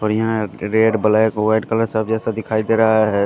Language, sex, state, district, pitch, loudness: Hindi, male, Punjab, Fazilka, 110 Hz, -17 LUFS